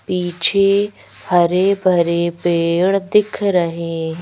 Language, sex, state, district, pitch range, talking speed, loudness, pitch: Hindi, female, Madhya Pradesh, Bhopal, 170-195 Hz, 100 wpm, -16 LUFS, 175 Hz